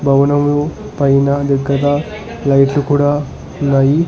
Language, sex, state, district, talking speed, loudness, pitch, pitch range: Telugu, male, Telangana, Hyderabad, 90 wpm, -14 LUFS, 145 Hz, 140-145 Hz